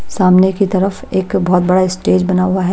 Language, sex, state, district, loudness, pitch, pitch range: Hindi, female, Odisha, Malkangiri, -13 LUFS, 185 Hz, 185-190 Hz